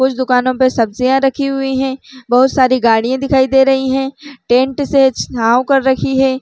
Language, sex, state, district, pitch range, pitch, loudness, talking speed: Chhattisgarhi, female, Chhattisgarh, Raigarh, 255-270 Hz, 265 Hz, -13 LUFS, 185 wpm